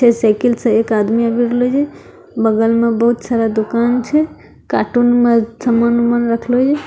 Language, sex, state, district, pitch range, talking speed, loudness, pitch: Angika, female, Bihar, Begusarai, 230-245 Hz, 130 wpm, -15 LUFS, 235 Hz